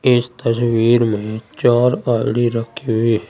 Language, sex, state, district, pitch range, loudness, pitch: Hindi, male, Uttar Pradesh, Saharanpur, 110-120 Hz, -17 LUFS, 115 Hz